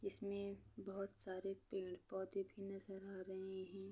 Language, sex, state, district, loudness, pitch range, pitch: Hindi, female, Chhattisgarh, Bastar, -49 LUFS, 190-195 Hz, 195 Hz